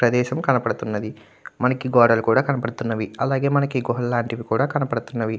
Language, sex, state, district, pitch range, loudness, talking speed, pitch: Telugu, male, Andhra Pradesh, Krishna, 115-135 Hz, -21 LUFS, 135 wpm, 120 Hz